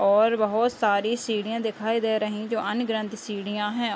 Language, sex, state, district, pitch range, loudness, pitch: Hindi, female, Uttar Pradesh, Deoria, 210-230 Hz, -25 LUFS, 220 Hz